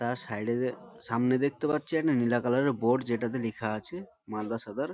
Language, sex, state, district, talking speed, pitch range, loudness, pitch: Bengali, male, West Bengal, Malda, 220 wpm, 115-140 Hz, -30 LUFS, 120 Hz